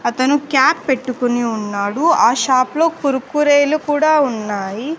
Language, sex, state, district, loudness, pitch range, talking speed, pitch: Telugu, female, Andhra Pradesh, Sri Satya Sai, -16 LUFS, 240-300 Hz, 130 wpm, 265 Hz